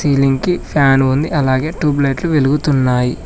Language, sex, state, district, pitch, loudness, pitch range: Telugu, male, Telangana, Mahabubabad, 140 Hz, -14 LUFS, 135-150 Hz